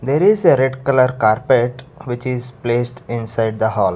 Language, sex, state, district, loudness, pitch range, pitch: English, male, Karnataka, Bangalore, -17 LUFS, 120-130 Hz, 125 Hz